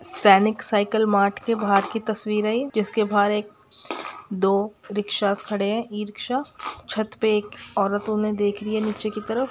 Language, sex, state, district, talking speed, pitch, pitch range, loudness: Hindi, female, Bihar, Gopalganj, 175 wpm, 210 Hz, 205-220 Hz, -23 LUFS